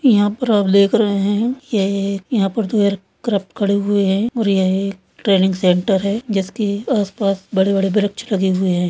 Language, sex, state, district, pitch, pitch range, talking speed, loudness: Hindi, male, Maharashtra, Dhule, 200 Hz, 195-210 Hz, 180 wpm, -17 LUFS